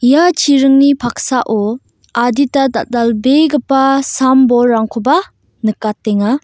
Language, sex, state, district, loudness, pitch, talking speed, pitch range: Garo, female, Meghalaya, West Garo Hills, -12 LUFS, 255 Hz, 75 wpm, 230-275 Hz